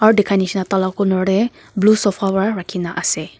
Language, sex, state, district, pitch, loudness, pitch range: Nagamese, female, Nagaland, Kohima, 195 Hz, -17 LUFS, 190-205 Hz